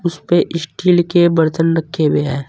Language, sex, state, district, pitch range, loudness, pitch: Hindi, male, Uttar Pradesh, Saharanpur, 155-175 Hz, -15 LUFS, 165 Hz